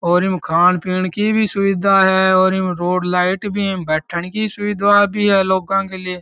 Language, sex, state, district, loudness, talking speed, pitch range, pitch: Marwari, male, Rajasthan, Churu, -16 LUFS, 195 wpm, 180-200 Hz, 190 Hz